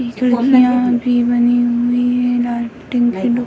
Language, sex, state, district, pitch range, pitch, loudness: Hindi, female, Bihar, Sitamarhi, 240-245 Hz, 245 Hz, -15 LUFS